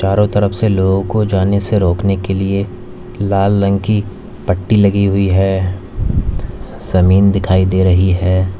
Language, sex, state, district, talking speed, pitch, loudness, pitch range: Hindi, male, Uttar Pradesh, Lalitpur, 155 wpm, 95 Hz, -14 LUFS, 95-100 Hz